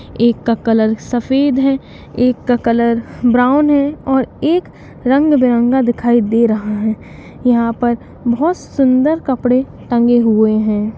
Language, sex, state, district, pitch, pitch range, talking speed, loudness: Hindi, female, Bihar, East Champaran, 245 Hz, 230-270 Hz, 145 wpm, -14 LUFS